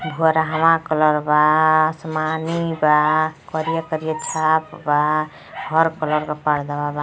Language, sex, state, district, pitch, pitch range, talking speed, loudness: Hindi, female, Uttar Pradesh, Deoria, 155 Hz, 150-160 Hz, 120 wpm, -19 LUFS